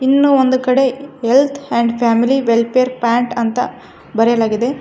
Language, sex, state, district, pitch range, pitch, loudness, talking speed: Kannada, female, Karnataka, Koppal, 235-270 Hz, 250 Hz, -15 LUFS, 125 wpm